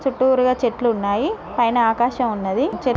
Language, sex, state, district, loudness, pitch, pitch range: Telugu, female, Telangana, Nalgonda, -19 LUFS, 240 Hz, 230-255 Hz